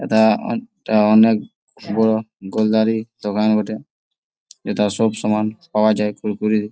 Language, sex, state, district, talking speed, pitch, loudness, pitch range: Bengali, male, West Bengal, Jalpaiguri, 125 wpm, 110 Hz, -18 LUFS, 105-110 Hz